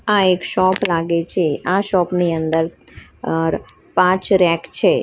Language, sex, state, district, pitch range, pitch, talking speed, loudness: Gujarati, female, Gujarat, Valsad, 165-185 Hz, 180 Hz, 155 wpm, -18 LUFS